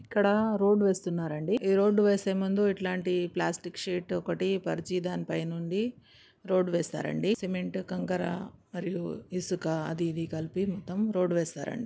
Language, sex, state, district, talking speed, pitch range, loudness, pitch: Telugu, female, Telangana, Karimnagar, 130 wpm, 175-195 Hz, -30 LUFS, 185 Hz